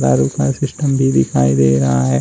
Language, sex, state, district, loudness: Hindi, male, Uttar Pradesh, Shamli, -15 LUFS